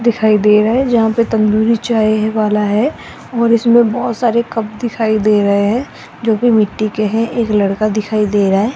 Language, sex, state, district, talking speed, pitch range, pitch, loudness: Hindi, female, Rajasthan, Jaipur, 200 wpm, 215-235 Hz, 220 Hz, -14 LUFS